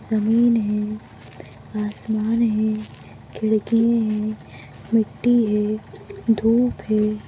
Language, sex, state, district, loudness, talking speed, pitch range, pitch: Hindi, female, Chhattisgarh, Raigarh, -21 LUFS, 80 wpm, 210-225 Hz, 215 Hz